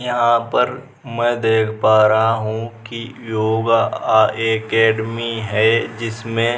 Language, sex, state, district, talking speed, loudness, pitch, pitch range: Hindi, male, Bihar, Vaishali, 125 wpm, -17 LUFS, 115 Hz, 110-115 Hz